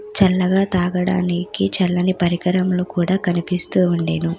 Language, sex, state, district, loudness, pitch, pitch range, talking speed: Telugu, female, Telangana, Hyderabad, -18 LUFS, 180 Hz, 175-185 Hz, 95 wpm